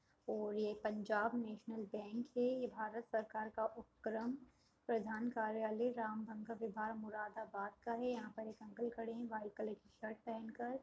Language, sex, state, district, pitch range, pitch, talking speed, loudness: Hindi, female, Uttar Pradesh, Jyotiba Phule Nagar, 215-235 Hz, 220 Hz, 175 wpm, -44 LUFS